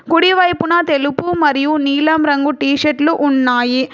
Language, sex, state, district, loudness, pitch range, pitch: Telugu, female, Telangana, Hyderabad, -14 LUFS, 280-325 Hz, 295 Hz